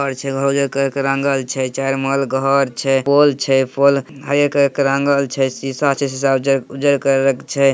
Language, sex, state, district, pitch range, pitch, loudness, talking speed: Hindi, male, Bihar, Samastipur, 135-140 Hz, 135 Hz, -17 LUFS, 180 wpm